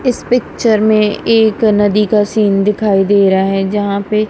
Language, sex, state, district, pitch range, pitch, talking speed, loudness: Hindi, female, Punjab, Kapurthala, 200-220 Hz, 210 Hz, 180 wpm, -12 LUFS